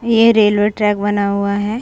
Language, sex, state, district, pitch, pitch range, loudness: Hindi, female, Bihar, Saran, 210 Hz, 205-220 Hz, -14 LUFS